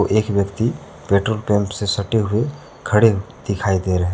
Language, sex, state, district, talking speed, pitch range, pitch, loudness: Hindi, male, Jharkhand, Deoghar, 175 wpm, 100-110 Hz, 105 Hz, -19 LUFS